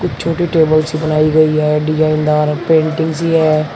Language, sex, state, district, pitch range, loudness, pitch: Hindi, male, Uttar Pradesh, Shamli, 155-160 Hz, -13 LUFS, 155 Hz